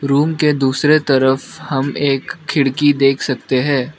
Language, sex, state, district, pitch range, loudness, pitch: Hindi, male, Arunachal Pradesh, Lower Dibang Valley, 135-145 Hz, -16 LUFS, 140 Hz